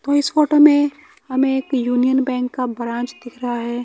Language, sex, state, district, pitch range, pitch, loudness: Hindi, male, Bihar, West Champaran, 245-285 Hz, 260 Hz, -18 LUFS